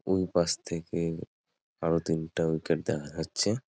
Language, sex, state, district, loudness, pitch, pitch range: Bengali, male, West Bengal, Jalpaiguri, -30 LUFS, 85 Hz, 80-85 Hz